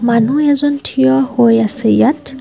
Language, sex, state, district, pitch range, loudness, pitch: Assamese, female, Assam, Kamrup Metropolitan, 235-285 Hz, -12 LUFS, 265 Hz